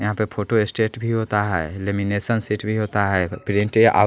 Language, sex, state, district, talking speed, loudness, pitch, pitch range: Hindi, male, Bihar, West Champaran, 205 wpm, -21 LUFS, 105 Hz, 100-110 Hz